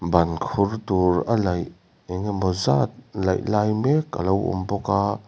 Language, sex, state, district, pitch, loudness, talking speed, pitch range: Mizo, male, Mizoram, Aizawl, 100 Hz, -23 LUFS, 150 wpm, 90-105 Hz